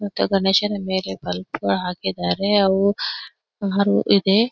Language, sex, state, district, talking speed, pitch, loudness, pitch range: Kannada, female, Karnataka, Belgaum, 105 wpm, 195 Hz, -20 LUFS, 180-200 Hz